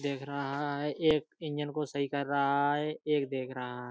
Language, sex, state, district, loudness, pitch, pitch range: Hindi, male, Uttar Pradesh, Budaun, -32 LUFS, 140 Hz, 140-150 Hz